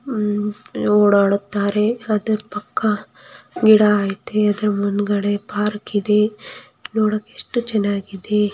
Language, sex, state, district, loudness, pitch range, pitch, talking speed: Kannada, female, Karnataka, Mysore, -19 LUFS, 205-215 Hz, 210 Hz, 100 wpm